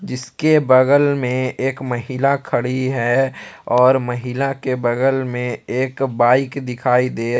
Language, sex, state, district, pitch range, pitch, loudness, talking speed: Hindi, male, Jharkhand, Palamu, 125-135 Hz, 130 Hz, -18 LUFS, 130 wpm